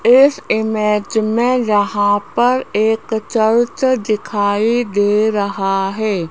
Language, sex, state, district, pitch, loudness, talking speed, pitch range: Hindi, female, Rajasthan, Jaipur, 215 Hz, -16 LUFS, 105 wpm, 205-235 Hz